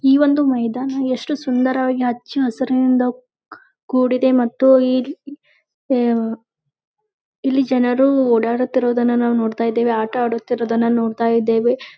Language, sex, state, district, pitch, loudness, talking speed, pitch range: Kannada, female, Karnataka, Gulbarga, 250 Hz, -17 LUFS, 100 wpm, 235-265 Hz